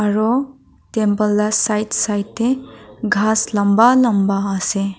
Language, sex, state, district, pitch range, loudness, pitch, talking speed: Nagamese, female, Nagaland, Dimapur, 205-225 Hz, -17 LUFS, 215 Hz, 120 wpm